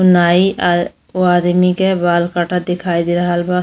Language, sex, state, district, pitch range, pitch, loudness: Bhojpuri, female, Uttar Pradesh, Deoria, 175-180 Hz, 175 Hz, -15 LUFS